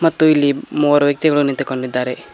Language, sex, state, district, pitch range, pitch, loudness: Kannada, male, Karnataka, Koppal, 135-150 Hz, 145 Hz, -16 LUFS